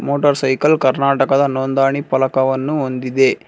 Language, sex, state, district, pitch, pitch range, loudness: Kannada, male, Karnataka, Bangalore, 135 Hz, 130-140 Hz, -16 LUFS